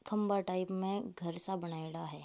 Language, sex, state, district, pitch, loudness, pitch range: Marwari, female, Rajasthan, Nagaur, 185 Hz, -37 LUFS, 170-200 Hz